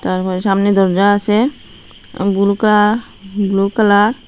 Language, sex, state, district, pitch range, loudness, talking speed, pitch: Bengali, female, Assam, Hailakandi, 195-210 Hz, -14 LUFS, 125 wpm, 200 Hz